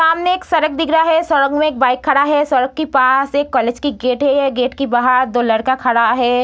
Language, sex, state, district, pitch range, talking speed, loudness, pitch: Hindi, female, Bihar, Saharsa, 250-305 Hz, 260 wpm, -15 LUFS, 275 Hz